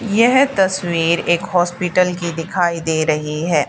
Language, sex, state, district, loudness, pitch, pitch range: Hindi, female, Haryana, Charkhi Dadri, -17 LUFS, 175 Hz, 165-185 Hz